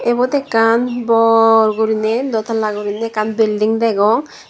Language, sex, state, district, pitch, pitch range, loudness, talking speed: Chakma, female, Tripura, Dhalai, 225 Hz, 215-230 Hz, -15 LUFS, 105 wpm